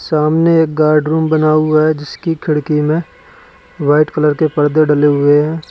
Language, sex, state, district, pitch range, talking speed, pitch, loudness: Hindi, male, Uttar Pradesh, Lalitpur, 150-160 Hz, 170 wpm, 155 Hz, -13 LUFS